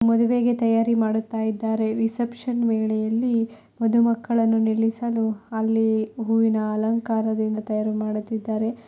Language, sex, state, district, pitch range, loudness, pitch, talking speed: Kannada, female, Karnataka, Shimoga, 220-230 Hz, -23 LUFS, 225 Hz, 90 wpm